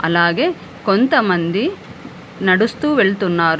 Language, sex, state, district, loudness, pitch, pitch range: Telugu, female, Telangana, Hyderabad, -16 LUFS, 185 Hz, 170-230 Hz